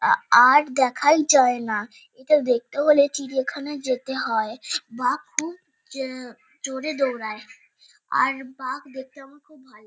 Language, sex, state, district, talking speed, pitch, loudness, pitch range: Bengali, female, West Bengal, Kolkata, 130 wpm, 265 Hz, -22 LUFS, 245-285 Hz